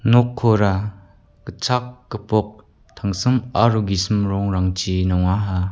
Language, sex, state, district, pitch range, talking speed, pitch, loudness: Garo, male, Meghalaya, West Garo Hills, 95-115 Hz, 85 wpm, 100 Hz, -20 LUFS